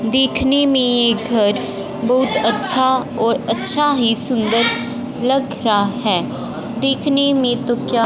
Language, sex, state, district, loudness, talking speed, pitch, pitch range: Hindi, female, Punjab, Fazilka, -16 LUFS, 120 wpm, 245 Hz, 230-265 Hz